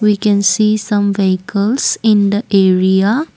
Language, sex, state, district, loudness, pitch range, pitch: English, female, Assam, Kamrup Metropolitan, -13 LUFS, 195-215 Hz, 205 Hz